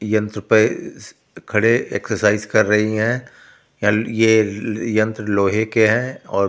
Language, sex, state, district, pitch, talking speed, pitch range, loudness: Hindi, male, Delhi, New Delhi, 110 Hz, 140 wpm, 105-115 Hz, -18 LUFS